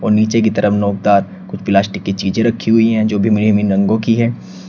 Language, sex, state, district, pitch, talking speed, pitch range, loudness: Hindi, male, Uttar Pradesh, Shamli, 105 Hz, 220 wpm, 100-115 Hz, -14 LUFS